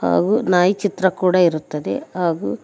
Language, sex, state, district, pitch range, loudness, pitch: Kannada, female, Karnataka, Koppal, 155-185 Hz, -18 LUFS, 180 Hz